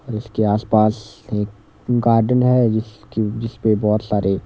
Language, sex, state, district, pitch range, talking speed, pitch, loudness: Hindi, male, Himachal Pradesh, Shimla, 105-115 Hz, 135 wpm, 110 Hz, -19 LUFS